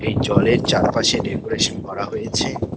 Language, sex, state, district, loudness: Bengali, male, West Bengal, Cooch Behar, -19 LUFS